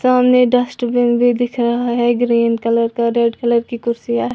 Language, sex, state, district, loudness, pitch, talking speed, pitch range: Hindi, female, Uttar Pradesh, Lalitpur, -16 LUFS, 240 Hz, 195 wpm, 235-245 Hz